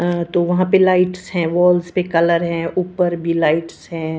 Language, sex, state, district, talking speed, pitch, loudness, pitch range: Hindi, female, Bihar, Patna, 200 wpm, 175 Hz, -17 LUFS, 170-180 Hz